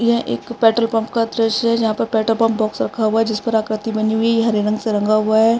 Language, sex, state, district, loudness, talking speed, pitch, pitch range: Hindi, male, Uttarakhand, Tehri Garhwal, -17 LUFS, 300 wpm, 225 Hz, 215-230 Hz